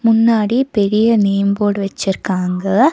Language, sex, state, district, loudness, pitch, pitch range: Tamil, female, Tamil Nadu, Nilgiris, -15 LUFS, 205 Hz, 195-225 Hz